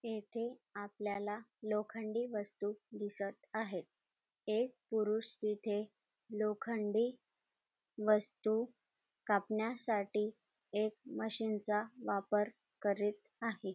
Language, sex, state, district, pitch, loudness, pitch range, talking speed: Marathi, female, Maharashtra, Dhule, 215 Hz, -39 LUFS, 205-225 Hz, 75 wpm